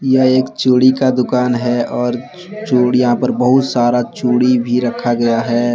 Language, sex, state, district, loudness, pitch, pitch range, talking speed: Hindi, male, Jharkhand, Deoghar, -14 LUFS, 125 Hz, 120-130 Hz, 175 wpm